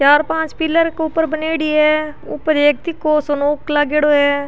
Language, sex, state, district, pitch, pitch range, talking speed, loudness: Rajasthani, female, Rajasthan, Churu, 305 Hz, 295-320 Hz, 200 wpm, -16 LUFS